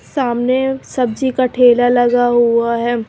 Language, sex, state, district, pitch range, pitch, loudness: Hindi, female, Chandigarh, Chandigarh, 240-255 Hz, 245 Hz, -14 LUFS